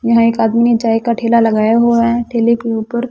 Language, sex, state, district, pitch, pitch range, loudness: Hindi, female, Delhi, New Delhi, 230 Hz, 225-235 Hz, -13 LUFS